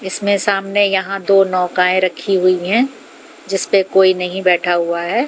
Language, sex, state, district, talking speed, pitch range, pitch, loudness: Hindi, female, Haryana, Jhajjar, 160 wpm, 185-200 Hz, 190 Hz, -15 LUFS